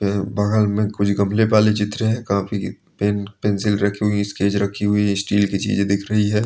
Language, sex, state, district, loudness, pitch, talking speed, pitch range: Hindi, male, Bihar, Bhagalpur, -20 LUFS, 105 Hz, 225 wpm, 100-105 Hz